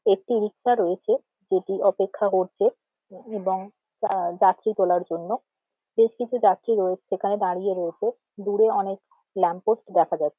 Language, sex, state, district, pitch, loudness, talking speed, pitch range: Bengali, female, West Bengal, Jhargram, 200 Hz, -24 LUFS, 120 wpm, 185-220 Hz